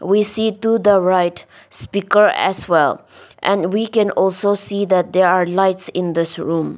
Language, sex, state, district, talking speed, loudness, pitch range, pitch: English, female, Nagaland, Dimapur, 175 wpm, -17 LUFS, 180-205 Hz, 195 Hz